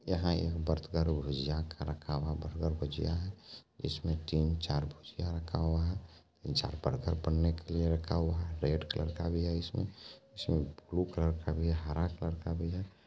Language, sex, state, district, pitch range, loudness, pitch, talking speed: Maithili, male, Bihar, Supaul, 80-85 Hz, -35 LUFS, 80 Hz, 200 wpm